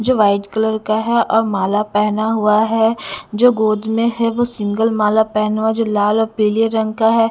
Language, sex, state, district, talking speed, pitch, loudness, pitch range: Hindi, female, Punjab, Pathankot, 215 wpm, 220 Hz, -16 LUFS, 210-225 Hz